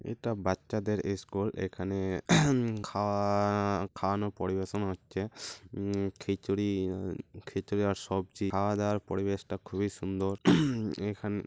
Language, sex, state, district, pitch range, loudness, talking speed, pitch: Bengali, male, West Bengal, Malda, 95-105 Hz, -32 LUFS, 110 wpm, 100 Hz